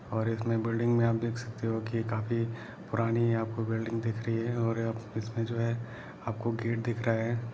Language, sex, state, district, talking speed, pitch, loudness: Hindi, male, Jharkhand, Jamtara, 200 wpm, 115 Hz, -31 LUFS